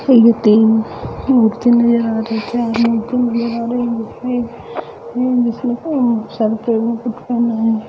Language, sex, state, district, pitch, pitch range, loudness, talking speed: Hindi, female, Bihar, Gopalganj, 235 Hz, 225-245 Hz, -16 LUFS, 55 wpm